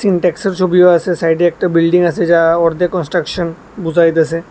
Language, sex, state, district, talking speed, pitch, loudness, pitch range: Bengali, male, Tripura, West Tripura, 145 wpm, 175 Hz, -13 LUFS, 165-180 Hz